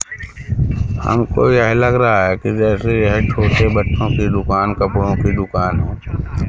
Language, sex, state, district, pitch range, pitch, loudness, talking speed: Hindi, male, Madhya Pradesh, Katni, 100-115 Hz, 105 Hz, -16 LUFS, 150 wpm